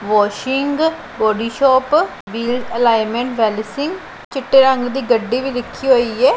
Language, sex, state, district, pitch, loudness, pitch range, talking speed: Punjabi, female, Punjab, Pathankot, 245 Hz, -16 LUFS, 225-270 Hz, 130 wpm